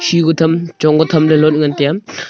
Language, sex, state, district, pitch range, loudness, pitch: Wancho, male, Arunachal Pradesh, Longding, 155-170 Hz, -13 LUFS, 160 Hz